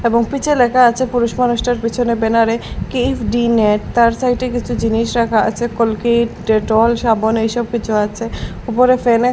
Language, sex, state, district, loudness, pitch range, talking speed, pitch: Bengali, female, Assam, Hailakandi, -15 LUFS, 225-245 Hz, 185 wpm, 235 Hz